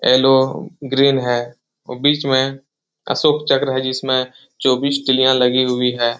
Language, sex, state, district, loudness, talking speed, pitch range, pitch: Hindi, male, Bihar, Jahanabad, -16 LUFS, 145 wpm, 125-140 Hz, 130 Hz